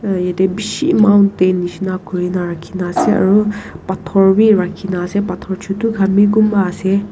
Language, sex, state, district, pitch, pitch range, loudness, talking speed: Nagamese, female, Nagaland, Kohima, 195 Hz, 185-205 Hz, -15 LUFS, 170 wpm